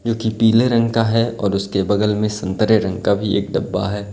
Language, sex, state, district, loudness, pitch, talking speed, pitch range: Hindi, male, Uttar Pradesh, Lalitpur, -18 LUFS, 105 Hz, 245 wpm, 100-115 Hz